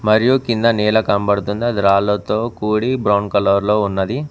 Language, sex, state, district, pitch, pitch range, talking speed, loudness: Telugu, male, Telangana, Mahabubabad, 105 Hz, 100-115 Hz, 155 wpm, -16 LUFS